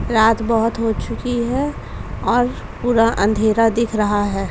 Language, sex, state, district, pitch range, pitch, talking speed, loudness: Hindi, female, Uttar Pradesh, Jalaun, 220-235 Hz, 225 Hz, 145 wpm, -18 LUFS